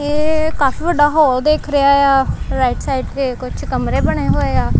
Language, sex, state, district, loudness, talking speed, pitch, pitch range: Punjabi, female, Punjab, Kapurthala, -16 LUFS, 185 wpm, 290 Hz, 275-305 Hz